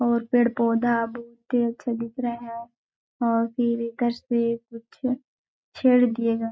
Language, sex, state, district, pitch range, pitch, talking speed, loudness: Hindi, female, Chhattisgarh, Balrampur, 230-240 Hz, 235 Hz, 110 wpm, -24 LUFS